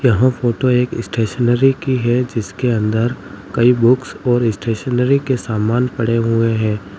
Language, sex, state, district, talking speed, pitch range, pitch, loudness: Hindi, male, Uttar Pradesh, Lalitpur, 145 wpm, 115-125 Hz, 120 Hz, -16 LUFS